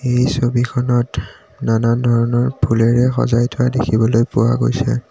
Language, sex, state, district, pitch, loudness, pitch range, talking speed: Assamese, male, Assam, Kamrup Metropolitan, 120 Hz, -16 LUFS, 115-125 Hz, 115 wpm